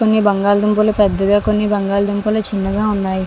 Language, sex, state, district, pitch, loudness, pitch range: Telugu, female, Andhra Pradesh, Visakhapatnam, 205 Hz, -15 LUFS, 200-210 Hz